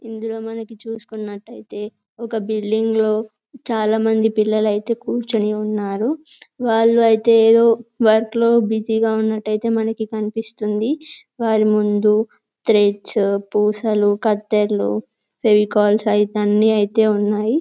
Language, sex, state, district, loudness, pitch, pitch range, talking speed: Telugu, female, Telangana, Karimnagar, -18 LUFS, 220 Hz, 210-225 Hz, 100 wpm